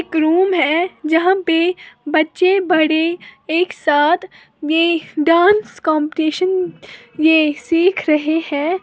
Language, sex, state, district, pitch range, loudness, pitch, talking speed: Hindi, female, Uttar Pradesh, Lalitpur, 315-360 Hz, -16 LUFS, 330 Hz, 110 wpm